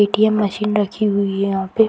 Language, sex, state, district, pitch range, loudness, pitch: Hindi, female, Bihar, Samastipur, 200-210 Hz, -18 LUFS, 205 Hz